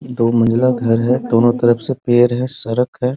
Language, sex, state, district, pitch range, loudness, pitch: Hindi, male, Bihar, Muzaffarpur, 115-125 Hz, -15 LUFS, 120 Hz